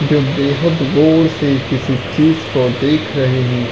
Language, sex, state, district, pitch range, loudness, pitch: Hindi, male, Chhattisgarh, Raigarh, 130-150 Hz, -14 LUFS, 140 Hz